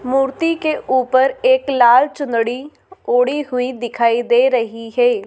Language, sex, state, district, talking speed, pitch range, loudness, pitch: Hindi, female, Madhya Pradesh, Dhar, 135 wpm, 240-285 Hz, -16 LUFS, 260 Hz